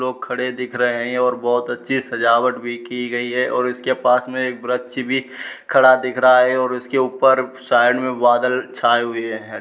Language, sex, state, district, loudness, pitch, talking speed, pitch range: Hindi, male, Uttar Pradesh, Muzaffarnagar, -18 LUFS, 125 Hz, 205 wpm, 120-130 Hz